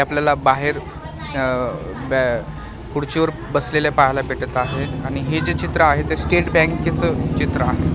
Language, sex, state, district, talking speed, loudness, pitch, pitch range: Marathi, male, Maharashtra, Mumbai Suburban, 150 wpm, -19 LUFS, 135 Hz, 125-145 Hz